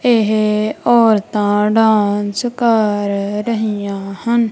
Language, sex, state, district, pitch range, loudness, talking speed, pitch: Punjabi, female, Punjab, Kapurthala, 205-230 Hz, -15 LUFS, 80 wpm, 215 Hz